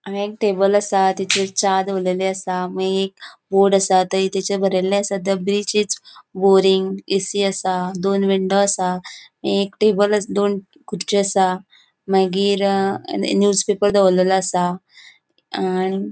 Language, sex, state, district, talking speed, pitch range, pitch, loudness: Konkani, female, Goa, North and South Goa, 145 wpm, 190-200 Hz, 195 Hz, -18 LUFS